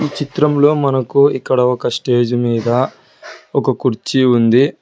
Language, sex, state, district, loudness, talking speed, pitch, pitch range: Telugu, male, Telangana, Hyderabad, -15 LUFS, 125 wpm, 130 Hz, 120-140 Hz